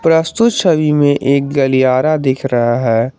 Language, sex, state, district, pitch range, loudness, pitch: Hindi, male, Jharkhand, Garhwa, 130-155 Hz, -13 LUFS, 140 Hz